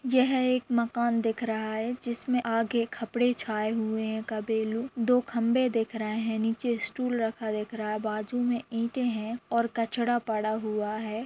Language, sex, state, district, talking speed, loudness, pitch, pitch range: Hindi, female, Jharkhand, Sahebganj, 180 wpm, -29 LUFS, 230 Hz, 220-240 Hz